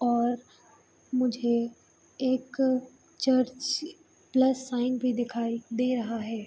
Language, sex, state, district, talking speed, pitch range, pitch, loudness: Hindi, female, Bihar, Begusarai, 100 wpm, 235-260 Hz, 250 Hz, -28 LUFS